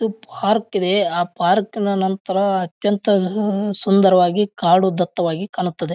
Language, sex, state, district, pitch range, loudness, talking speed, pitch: Kannada, male, Karnataka, Bijapur, 180-205 Hz, -18 LUFS, 130 wpm, 195 Hz